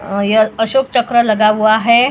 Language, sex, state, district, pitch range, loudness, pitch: Hindi, female, Maharashtra, Mumbai Suburban, 215-240 Hz, -13 LUFS, 220 Hz